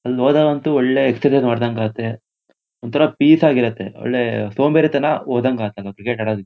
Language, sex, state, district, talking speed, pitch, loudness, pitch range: Kannada, male, Karnataka, Shimoga, 150 wpm, 125 Hz, -17 LUFS, 115-145 Hz